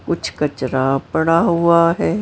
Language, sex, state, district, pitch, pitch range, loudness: Hindi, female, Maharashtra, Mumbai Suburban, 160 Hz, 135-170 Hz, -17 LUFS